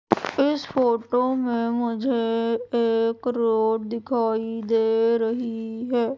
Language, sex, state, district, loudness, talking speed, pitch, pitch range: Hindi, female, Madhya Pradesh, Umaria, -23 LUFS, 95 wpm, 230 Hz, 225-245 Hz